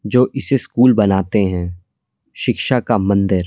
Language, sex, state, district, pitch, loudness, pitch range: Hindi, male, Delhi, New Delhi, 105 Hz, -16 LUFS, 95-125 Hz